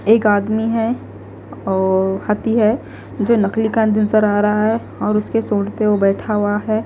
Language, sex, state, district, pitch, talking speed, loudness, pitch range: Hindi, female, Punjab, Fazilka, 210 Hz, 185 wpm, -17 LUFS, 200-220 Hz